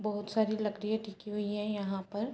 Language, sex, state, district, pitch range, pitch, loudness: Hindi, female, Bihar, Sitamarhi, 205-215 Hz, 210 Hz, -34 LUFS